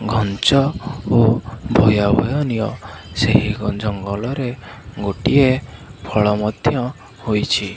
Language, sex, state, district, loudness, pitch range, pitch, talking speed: Odia, male, Odisha, Khordha, -18 LUFS, 100-125 Hz, 110 Hz, 70 wpm